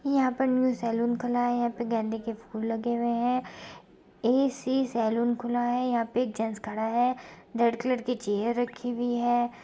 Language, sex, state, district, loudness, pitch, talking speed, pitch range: Hindi, female, Uttar Pradesh, Muzaffarnagar, -28 LUFS, 240 Hz, 210 wpm, 230-250 Hz